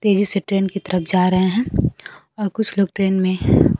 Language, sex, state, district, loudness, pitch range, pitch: Hindi, female, Bihar, Kaimur, -18 LUFS, 185-205 Hz, 195 Hz